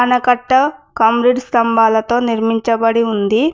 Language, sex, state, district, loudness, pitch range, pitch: Telugu, female, Telangana, Mahabubabad, -14 LUFS, 225-250 Hz, 235 Hz